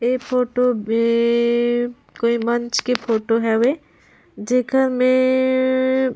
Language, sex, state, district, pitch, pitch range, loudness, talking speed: Surgujia, female, Chhattisgarh, Sarguja, 245 Hz, 235-255 Hz, -19 LUFS, 100 wpm